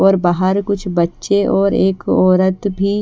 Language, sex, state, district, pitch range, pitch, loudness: Hindi, female, Haryana, Rohtak, 175-195 Hz, 185 Hz, -15 LUFS